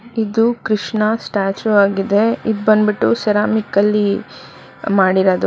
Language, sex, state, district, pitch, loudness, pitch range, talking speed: Kannada, female, Karnataka, Bangalore, 210 Hz, -16 LUFS, 200-220 Hz, 100 wpm